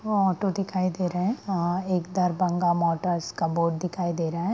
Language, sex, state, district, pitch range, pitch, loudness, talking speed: Hindi, female, Bihar, Darbhanga, 170-190 Hz, 180 Hz, -26 LUFS, 200 wpm